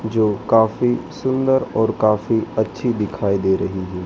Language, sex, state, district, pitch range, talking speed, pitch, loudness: Hindi, male, Madhya Pradesh, Dhar, 100-120 Hz, 150 wpm, 110 Hz, -19 LUFS